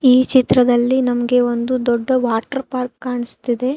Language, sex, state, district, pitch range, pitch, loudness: Kannada, female, Karnataka, Chamarajanagar, 240-255 Hz, 250 Hz, -17 LUFS